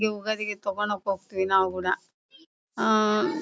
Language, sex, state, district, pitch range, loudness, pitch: Kannada, female, Karnataka, Bellary, 195-215 Hz, -26 LUFS, 210 Hz